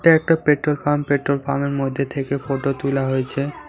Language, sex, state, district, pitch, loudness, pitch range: Bengali, male, West Bengal, Alipurduar, 140 Hz, -20 LUFS, 135-145 Hz